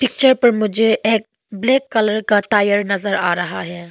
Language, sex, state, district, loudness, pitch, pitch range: Hindi, female, Arunachal Pradesh, Longding, -16 LUFS, 215 Hz, 200-225 Hz